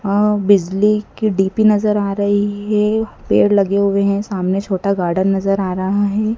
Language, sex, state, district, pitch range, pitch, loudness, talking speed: Hindi, female, Madhya Pradesh, Dhar, 195-210 Hz, 200 Hz, -16 LUFS, 180 wpm